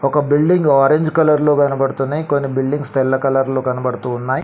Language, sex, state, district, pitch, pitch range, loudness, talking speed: Telugu, male, Telangana, Mahabubabad, 135 Hz, 135-150 Hz, -16 LUFS, 150 wpm